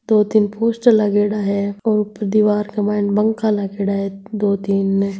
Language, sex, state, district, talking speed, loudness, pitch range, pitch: Marwari, female, Rajasthan, Nagaur, 150 wpm, -18 LUFS, 200-215 Hz, 210 Hz